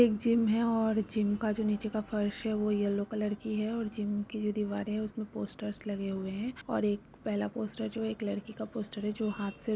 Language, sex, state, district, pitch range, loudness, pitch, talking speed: Hindi, female, West Bengal, Purulia, 205-220 Hz, -33 LUFS, 215 Hz, 220 wpm